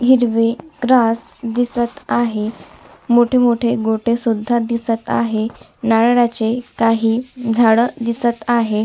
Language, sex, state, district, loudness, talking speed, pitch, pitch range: Marathi, female, Maharashtra, Sindhudurg, -17 LUFS, 95 wpm, 235 Hz, 225-240 Hz